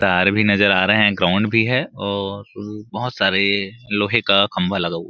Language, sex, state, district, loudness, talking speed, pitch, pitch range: Hindi, male, Chhattisgarh, Bilaspur, -17 LUFS, 210 wpm, 100 Hz, 100-105 Hz